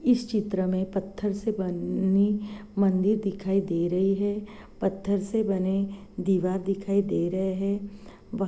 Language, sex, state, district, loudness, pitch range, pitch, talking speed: Hindi, female, Maharashtra, Chandrapur, -27 LUFS, 190-205 Hz, 195 Hz, 140 wpm